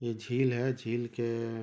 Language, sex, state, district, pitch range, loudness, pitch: Hindi, male, Chhattisgarh, Rajnandgaon, 115-125 Hz, -32 LUFS, 120 Hz